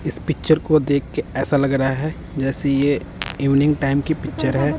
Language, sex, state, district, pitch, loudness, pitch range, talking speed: Hindi, male, Punjab, Kapurthala, 140 Hz, -20 LUFS, 135-150 Hz, 200 wpm